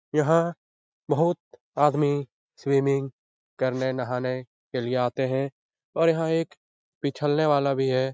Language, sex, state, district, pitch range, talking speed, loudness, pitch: Hindi, male, Bihar, Jahanabad, 130-150 Hz, 125 wpm, -26 LUFS, 140 Hz